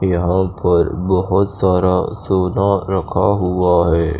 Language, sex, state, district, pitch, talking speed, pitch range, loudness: Hindi, male, Chandigarh, Chandigarh, 90 Hz, 115 wpm, 90-95 Hz, -16 LUFS